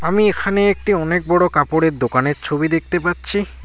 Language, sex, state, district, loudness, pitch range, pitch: Bengali, male, West Bengal, Alipurduar, -17 LUFS, 155-200 Hz, 175 Hz